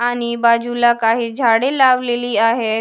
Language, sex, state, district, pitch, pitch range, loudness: Marathi, female, Maharashtra, Washim, 235 Hz, 230-245 Hz, -15 LUFS